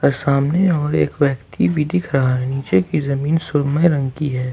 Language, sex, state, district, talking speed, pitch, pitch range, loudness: Hindi, male, Jharkhand, Ranchi, 210 wpm, 140 Hz, 130-155 Hz, -18 LUFS